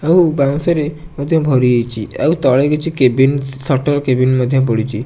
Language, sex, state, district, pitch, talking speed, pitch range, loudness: Odia, male, Odisha, Nuapada, 135 Hz, 180 wpm, 130-150 Hz, -15 LUFS